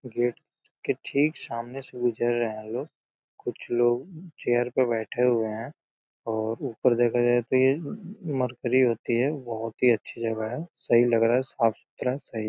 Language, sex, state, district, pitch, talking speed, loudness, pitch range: Hindi, male, Uttar Pradesh, Deoria, 120 Hz, 180 wpm, -26 LUFS, 115-130 Hz